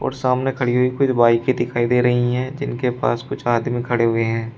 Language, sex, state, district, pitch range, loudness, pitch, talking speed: Hindi, male, Uttar Pradesh, Shamli, 120-130 Hz, -19 LUFS, 120 Hz, 225 wpm